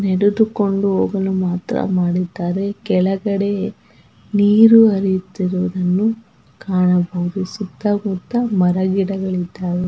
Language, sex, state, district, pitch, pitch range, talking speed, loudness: Kannada, female, Karnataka, Belgaum, 190 Hz, 180-205 Hz, 80 wpm, -17 LUFS